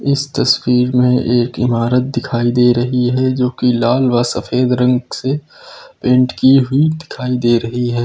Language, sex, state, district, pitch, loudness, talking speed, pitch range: Hindi, male, Uttar Pradesh, Lucknow, 125 Hz, -15 LUFS, 170 wpm, 120-130 Hz